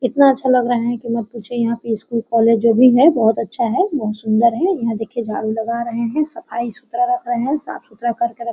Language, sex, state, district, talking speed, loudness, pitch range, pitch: Hindi, female, Jharkhand, Sahebganj, 260 wpm, -18 LUFS, 230-260 Hz, 235 Hz